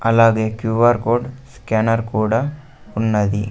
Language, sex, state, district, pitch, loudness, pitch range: Telugu, male, Andhra Pradesh, Sri Satya Sai, 115 Hz, -18 LUFS, 110-120 Hz